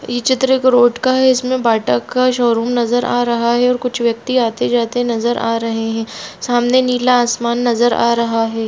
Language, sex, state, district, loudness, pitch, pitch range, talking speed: Hindi, female, Bihar, Bhagalpur, -15 LUFS, 240 Hz, 230-250 Hz, 240 wpm